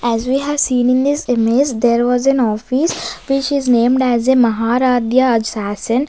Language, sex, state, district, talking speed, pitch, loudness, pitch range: English, female, Maharashtra, Gondia, 175 wpm, 250 Hz, -15 LUFS, 235-265 Hz